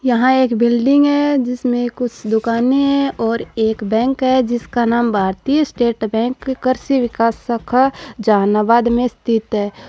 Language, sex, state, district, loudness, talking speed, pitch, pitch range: Marwari, female, Rajasthan, Churu, -16 LUFS, 145 wpm, 240 Hz, 230-260 Hz